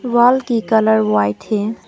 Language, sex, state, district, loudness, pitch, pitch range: Hindi, female, Arunachal Pradesh, Papum Pare, -15 LUFS, 220 Hz, 210-240 Hz